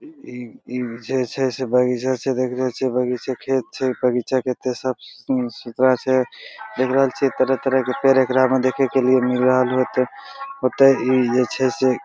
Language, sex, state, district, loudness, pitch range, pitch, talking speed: Maithili, male, Bihar, Begusarai, -20 LUFS, 125-130 Hz, 130 Hz, 165 wpm